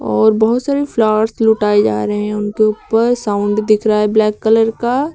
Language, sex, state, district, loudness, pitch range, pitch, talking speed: Hindi, female, Uttar Pradesh, Lucknow, -14 LUFS, 210-225 Hz, 215 Hz, 200 wpm